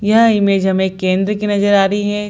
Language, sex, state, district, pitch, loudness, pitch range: Hindi, female, Bihar, Lakhisarai, 200 Hz, -14 LUFS, 190-205 Hz